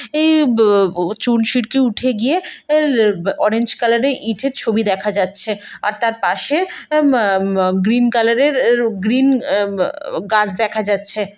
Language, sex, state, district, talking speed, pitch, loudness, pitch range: Bengali, female, West Bengal, Malda, 160 wpm, 230 Hz, -16 LUFS, 205-260 Hz